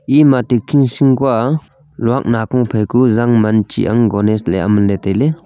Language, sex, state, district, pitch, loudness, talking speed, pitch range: Wancho, male, Arunachal Pradesh, Longding, 120 Hz, -14 LUFS, 90 wpm, 110-135 Hz